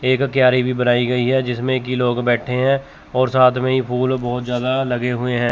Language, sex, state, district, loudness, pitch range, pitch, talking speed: Hindi, male, Chandigarh, Chandigarh, -18 LUFS, 125-130 Hz, 125 Hz, 230 wpm